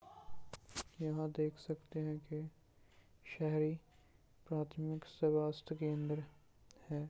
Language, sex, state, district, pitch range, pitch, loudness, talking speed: Hindi, male, Bihar, Purnia, 150-155 Hz, 155 Hz, -41 LUFS, 85 wpm